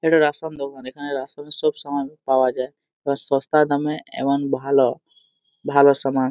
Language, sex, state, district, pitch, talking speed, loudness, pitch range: Bengali, male, Jharkhand, Jamtara, 140 Hz, 145 wpm, -21 LUFS, 135-145 Hz